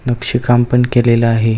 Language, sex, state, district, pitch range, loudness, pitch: Marathi, male, Maharashtra, Aurangabad, 115-125 Hz, -13 LUFS, 120 Hz